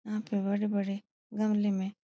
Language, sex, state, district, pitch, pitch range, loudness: Hindi, female, Uttar Pradesh, Etah, 205 Hz, 200-215 Hz, -31 LUFS